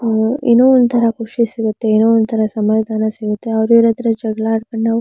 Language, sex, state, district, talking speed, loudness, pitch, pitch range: Kannada, male, Karnataka, Mysore, 165 wpm, -15 LUFS, 225 Hz, 220-230 Hz